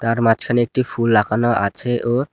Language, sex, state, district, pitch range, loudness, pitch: Bengali, male, West Bengal, Alipurduar, 115-120 Hz, -18 LUFS, 120 Hz